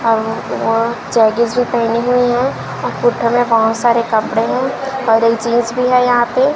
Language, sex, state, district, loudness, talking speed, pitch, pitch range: Hindi, female, Chhattisgarh, Raipur, -15 LUFS, 165 wpm, 235 Hz, 230-245 Hz